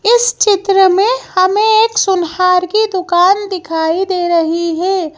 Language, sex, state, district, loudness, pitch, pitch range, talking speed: Hindi, female, Madhya Pradesh, Bhopal, -12 LUFS, 375 Hz, 350-415 Hz, 140 wpm